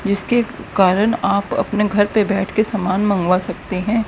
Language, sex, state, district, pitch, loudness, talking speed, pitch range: Hindi, female, Haryana, Rohtak, 205 Hz, -18 LUFS, 175 wpm, 195-215 Hz